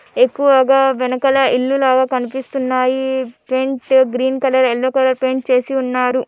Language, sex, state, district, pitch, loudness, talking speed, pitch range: Telugu, female, Andhra Pradesh, Anantapur, 260 Hz, -15 LUFS, 115 wpm, 255-265 Hz